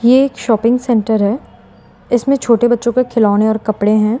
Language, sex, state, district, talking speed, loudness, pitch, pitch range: Hindi, female, Gujarat, Valsad, 185 wpm, -14 LUFS, 235 Hz, 220-245 Hz